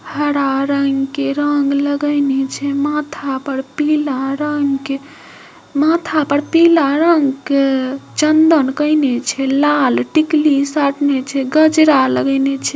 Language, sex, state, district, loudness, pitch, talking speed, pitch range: Maithili, female, Bihar, Samastipur, -15 LUFS, 285 Hz, 120 wpm, 275-300 Hz